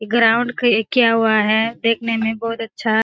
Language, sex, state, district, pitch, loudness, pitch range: Hindi, female, Bihar, Kishanganj, 230 Hz, -17 LUFS, 220-230 Hz